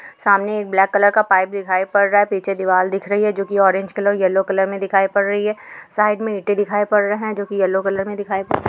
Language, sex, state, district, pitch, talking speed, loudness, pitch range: Hindi, female, Uttar Pradesh, Etah, 200 Hz, 275 wpm, -18 LUFS, 195-205 Hz